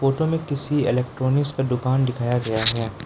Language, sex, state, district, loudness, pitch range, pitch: Hindi, male, Arunachal Pradesh, Lower Dibang Valley, -21 LUFS, 120-140 Hz, 130 Hz